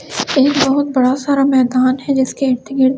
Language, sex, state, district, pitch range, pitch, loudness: Hindi, female, Delhi, New Delhi, 255-275 Hz, 270 Hz, -14 LUFS